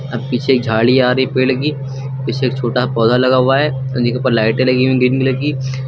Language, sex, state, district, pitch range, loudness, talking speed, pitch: Hindi, male, Uttar Pradesh, Lucknow, 125-130 Hz, -15 LUFS, 255 wpm, 130 Hz